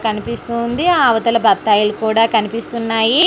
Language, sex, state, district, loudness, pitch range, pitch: Telugu, female, Andhra Pradesh, Anantapur, -15 LUFS, 220-235 Hz, 230 Hz